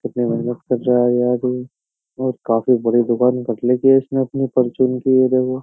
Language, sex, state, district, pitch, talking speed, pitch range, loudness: Hindi, male, Uttar Pradesh, Jyotiba Phule Nagar, 125 Hz, 215 wpm, 120-130 Hz, -18 LUFS